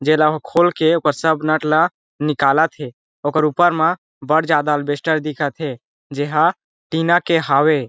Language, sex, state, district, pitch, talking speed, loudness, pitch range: Chhattisgarhi, male, Chhattisgarh, Jashpur, 155 Hz, 180 wpm, -17 LUFS, 145-160 Hz